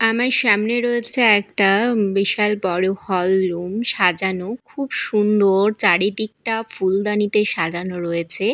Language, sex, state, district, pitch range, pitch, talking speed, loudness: Bengali, female, Odisha, Malkangiri, 190-225 Hz, 205 Hz, 105 wpm, -19 LUFS